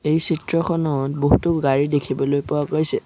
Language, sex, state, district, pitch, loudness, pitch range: Assamese, male, Assam, Sonitpur, 150 Hz, -20 LUFS, 140-165 Hz